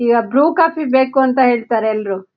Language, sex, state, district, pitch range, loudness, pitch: Kannada, female, Karnataka, Shimoga, 225-270 Hz, -15 LUFS, 245 Hz